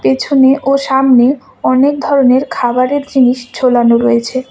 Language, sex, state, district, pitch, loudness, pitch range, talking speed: Bengali, female, West Bengal, Cooch Behar, 260 Hz, -11 LUFS, 245-275 Hz, 120 wpm